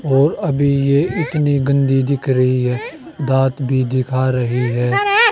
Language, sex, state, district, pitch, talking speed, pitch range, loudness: Hindi, male, Haryana, Charkhi Dadri, 135 Hz, 145 wpm, 130-140 Hz, -16 LUFS